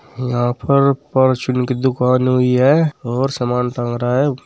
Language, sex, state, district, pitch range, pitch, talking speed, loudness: Hindi, male, Uttar Pradesh, Muzaffarnagar, 125-135 Hz, 125 Hz, 160 wpm, -16 LUFS